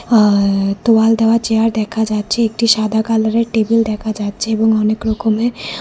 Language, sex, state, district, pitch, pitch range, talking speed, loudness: Bengali, female, Tripura, West Tripura, 220 Hz, 215-225 Hz, 155 wpm, -15 LUFS